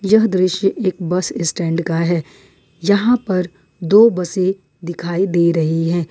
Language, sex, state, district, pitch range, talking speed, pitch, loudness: Hindi, female, Jharkhand, Ranchi, 170-195 Hz, 145 wpm, 180 Hz, -17 LUFS